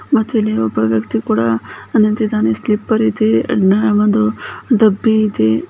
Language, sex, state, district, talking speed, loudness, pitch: Kannada, female, Karnataka, Bijapur, 145 wpm, -15 LUFS, 215 Hz